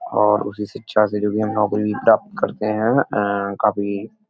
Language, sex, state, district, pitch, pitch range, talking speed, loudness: Hindi, male, Uttar Pradesh, Etah, 105 Hz, 100-110 Hz, 195 wpm, -20 LUFS